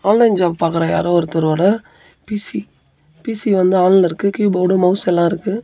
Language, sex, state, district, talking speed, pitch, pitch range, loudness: Tamil, male, Tamil Nadu, Namakkal, 150 wpm, 185 Hz, 170-205 Hz, -16 LUFS